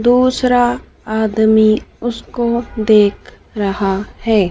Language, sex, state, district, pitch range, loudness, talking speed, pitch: Hindi, female, Madhya Pradesh, Dhar, 210-240 Hz, -15 LUFS, 80 wpm, 220 Hz